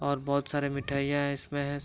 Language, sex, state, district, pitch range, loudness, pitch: Hindi, male, Jharkhand, Sahebganj, 140-145 Hz, -31 LUFS, 140 Hz